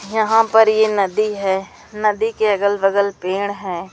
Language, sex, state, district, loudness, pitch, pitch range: Hindi, female, Madhya Pradesh, Umaria, -17 LUFS, 205 Hz, 195-215 Hz